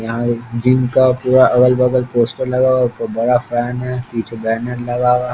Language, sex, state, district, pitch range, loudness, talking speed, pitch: Hindi, male, Bihar, East Champaran, 120-125 Hz, -16 LUFS, 200 wpm, 125 Hz